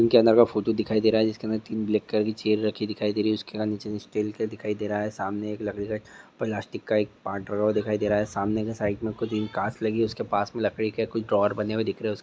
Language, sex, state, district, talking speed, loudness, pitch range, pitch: Hindi, male, Andhra Pradesh, Visakhapatnam, 305 wpm, -26 LUFS, 105-110 Hz, 105 Hz